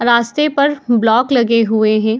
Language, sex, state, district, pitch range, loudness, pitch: Hindi, female, Bihar, Saharsa, 220-260 Hz, -14 LUFS, 235 Hz